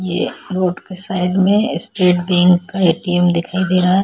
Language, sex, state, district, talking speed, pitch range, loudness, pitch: Hindi, female, Chhattisgarh, Sukma, 240 wpm, 180-190 Hz, -16 LUFS, 180 Hz